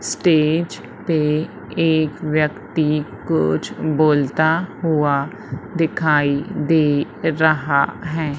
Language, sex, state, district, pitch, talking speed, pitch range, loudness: Hindi, female, Madhya Pradesh, Umaria, 155 Hz, 80 wpm, 145-160 Hz, -19 LUFS